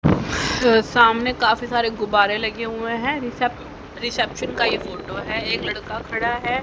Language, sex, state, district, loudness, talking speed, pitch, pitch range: Hindi, female, Haryana, Rohtak, -21 LUFS, 145 wpm, 230 Hz, 225-245 Hz